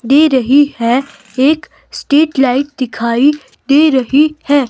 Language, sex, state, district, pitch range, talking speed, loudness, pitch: Hindi, female, Himachal Pradesh, Shimla, 255-295 Hz, 125 wpm, -12 LUFS, 275 Hz